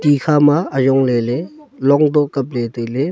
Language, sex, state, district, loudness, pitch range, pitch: Wancho, male, Arunachal Pradesh, Longding, -16 LUFS, 130-150 Hz, 140 Hz